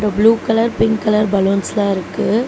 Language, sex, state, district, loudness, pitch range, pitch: Tamil, female, Tamil Nadu, Namakkal, -16 LUFS, 200-225 Hz, 210 Hz